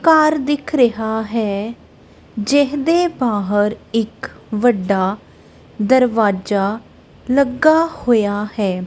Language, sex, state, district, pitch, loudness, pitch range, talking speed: Punjabi, female, Punjab, Kapurthala, 225 Hz, -17 LUFS, 205-280 Hz, 80 wpm